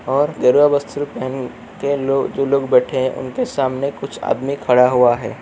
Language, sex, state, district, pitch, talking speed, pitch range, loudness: Hindi, male, Uttar Pradesh, Muzaffarnagar, 135 Hz, 190 wpm, 130-140 Hz, -17 LUFS